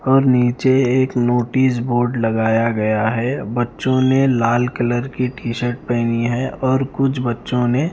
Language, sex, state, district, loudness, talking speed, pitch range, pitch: Hindi, male, Punjab, Fazilka, -18 LUFS, 165 wpm, 120-130 Hz, 120 Hz